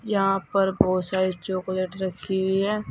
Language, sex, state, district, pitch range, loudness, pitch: Hindi, female, Uttar Pradesh, Saharanpur, 185-195 Hz, -24 LUFS, 190 Hz